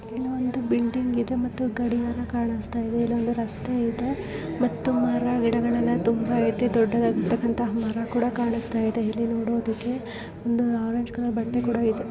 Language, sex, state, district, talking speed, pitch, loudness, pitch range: Kannada, female, Karnataka, Bellary, 145 wpm, 235 Hz, -25 LUFS, 230-240 Hz